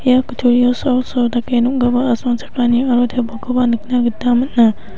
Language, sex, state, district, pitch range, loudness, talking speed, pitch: Garo, female, Meghalaya, West Garo Hills, 240-255 Hz, -16 LUFS, 110 wpm, 245 Hz